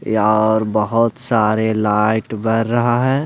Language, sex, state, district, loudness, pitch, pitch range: Hindi, male, Haryana, Rohtak, -16 LUFS, 110 Hz, 110-115 Hz